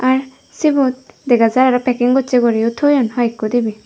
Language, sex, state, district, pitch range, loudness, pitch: Chakma, female, Tripura, Dhalai, 235-265 Hz, -15 LUFS, 250 Hz